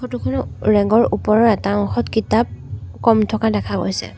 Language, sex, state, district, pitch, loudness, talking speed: Assamese, female, Assam, Sonitpur, 205 Hz, -18 LUFS, 160 wpm